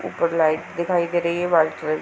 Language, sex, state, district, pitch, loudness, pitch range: Hindi, female, Uttar Pradesh, Hamirpur, 170 Hz, -21 LUFS, 160-170 Hz